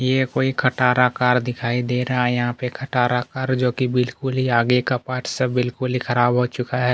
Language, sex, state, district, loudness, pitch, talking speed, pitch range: Hindi, male, Chhattisgarh, Kabirdham, -20 LUFS, 125 Hz, 210 wpm, 125-130 Hz